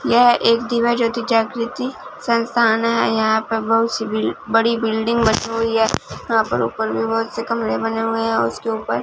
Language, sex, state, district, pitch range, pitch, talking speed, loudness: Hindi, female, Punjab, Fazilka, 220-235 Hz, 225 Hz, 180 wpm, -19 LUFS